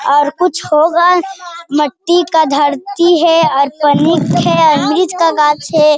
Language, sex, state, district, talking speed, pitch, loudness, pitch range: Hindi, female, Bihar, Jamui, 140 wpm, 320 Hz, -11 LUFS, 295-345 Hz